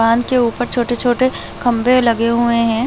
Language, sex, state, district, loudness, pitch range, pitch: Hindi, female, Chhattisgarh, Bastar, -15 LUFS, 230-245 Hz, 240 Hz